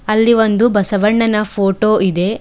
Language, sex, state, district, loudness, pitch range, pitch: Kannada, female, Karnataka, Bidar, -13 LUFS, 200-220 Hz, 210 Hz